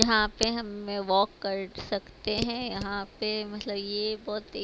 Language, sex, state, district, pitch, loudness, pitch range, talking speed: Hindi, female, Haryana, Rohtak, 210 Hz, -30 LUFS, 200-215 Hz, 180 wpm